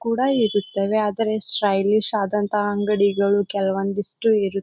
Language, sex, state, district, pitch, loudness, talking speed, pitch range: Kannada, female, Karnataka, Bijapur, 205 Hz, -19 LUFS, 115 wpm, 200-215 Hz